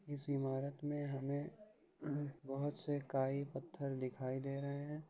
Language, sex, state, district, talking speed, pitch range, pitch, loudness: Hindi, male, Uttar Pradesh, Hamirpur, 140 wpm, 135-145 Hz, 140 Hz, -43 LUFS